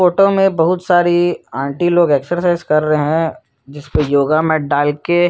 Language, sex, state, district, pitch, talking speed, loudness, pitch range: Hindi, male, Chhattisgarh, Korba, 160 Hz, 160 wpm, -15 LUFS, 145-175 Hz